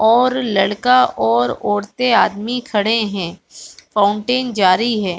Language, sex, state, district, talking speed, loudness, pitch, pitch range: Hindi, female, Chhattisgarh, Balrampur, 115 wpm, -16 LUFS, 210 Hz, 195-240 Hz